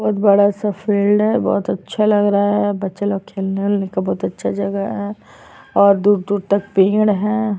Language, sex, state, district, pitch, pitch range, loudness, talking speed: Hindi, female, Chhattisgarh, Sukma, 200 Hz, 195-205 Hz, -17 LUFS, 220 wpm